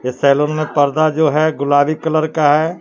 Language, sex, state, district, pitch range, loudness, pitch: Hindi, male, Jharkhand, Palamu, 145-155 Hz, -15 LUFS, 155 Hz